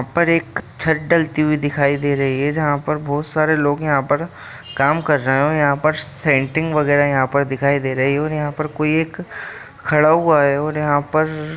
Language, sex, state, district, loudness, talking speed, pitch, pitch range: Hindi, male, Bihar, Jahanabad, -17 LUFS, 230 wpm, 150 Hz, 140-155 Hz